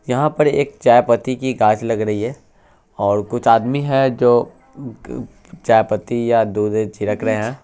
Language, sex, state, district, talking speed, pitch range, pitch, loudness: Hindi, male, Bihar, Araria, 180 wpm, 110-130 Hz, 115 Hz, -17 LUFS